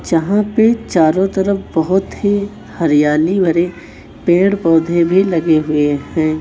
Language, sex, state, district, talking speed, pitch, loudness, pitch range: Hindi, male, Chhattisgarh, Raipur, 130 wpm, 170 Hz, -14 LUFS, 160-195 Hz